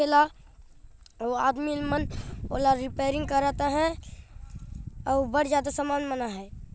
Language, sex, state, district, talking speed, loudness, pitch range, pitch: Sadri, male, Chhattisgarh, Jashpur, 135 wpm, -27 LUFS, 265-295 Hz, 285 Hz